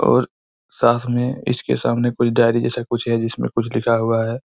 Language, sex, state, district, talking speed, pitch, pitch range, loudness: Hindi, male, Chhattisgarh, Raigarh, 215 wpm, 120 Hz, 115-120 Hz, -19 LUFS